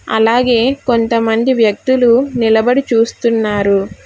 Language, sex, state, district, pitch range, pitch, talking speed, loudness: Telugu, female, Telangana, Hyderabad, 220-245 Hz, 230 Hz, 75 wpm, -13 LUFS